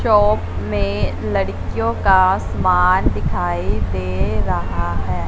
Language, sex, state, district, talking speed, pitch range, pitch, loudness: Hindi, female, Punjab, Fazilka, 100 wpm, 85-105 Hz, 95 Hz, -18 LUFS